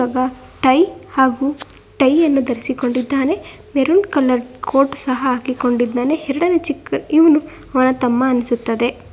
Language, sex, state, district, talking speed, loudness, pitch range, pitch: Kannada, female, Karnataka, Bangalore, 110 wpm, -17 LUFS, 250-295 Hz, 265 Hz